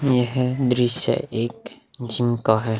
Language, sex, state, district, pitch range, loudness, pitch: Hindi, male, Uttar Pradesh, Muzaffarnagar, 115-125 Hz, -22 LUFS, 120 Hz